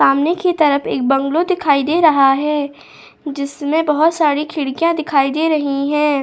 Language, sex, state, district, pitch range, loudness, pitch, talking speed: Hindi, female, Goa, North and South Goa, 280-320 Hz, -16 LUFS, 295 Hz, 165 wpm